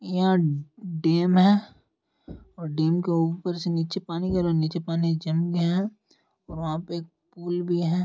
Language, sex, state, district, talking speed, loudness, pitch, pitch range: Hindi, male, Uttar Pradesh, Deoria, 165 wpm, -25 LUFS, 170 Hz, 165-180 Hz